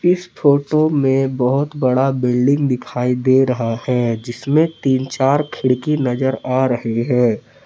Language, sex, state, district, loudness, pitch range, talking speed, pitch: Hindi, male, Jharkhand, Palamu, -17 LUFS, 125-140 Hz, 135 wpm, 130 Hz